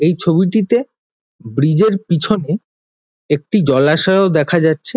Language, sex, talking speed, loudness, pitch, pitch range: Bengali, male, 110 wpm, -15 LUFS, 170 Hz, 150-200 Hz